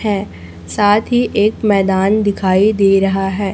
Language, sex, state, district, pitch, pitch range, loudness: Hindi, female, Chhattisgarh, Raipur, 200 Hz, 190-210 Hz, -14 LUFS